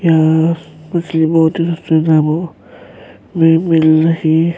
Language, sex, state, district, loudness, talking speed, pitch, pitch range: Urdu, male, Bihar, Saharsa, -13 LUFS, 130 wpm, 160 Hz, 160-165 Hz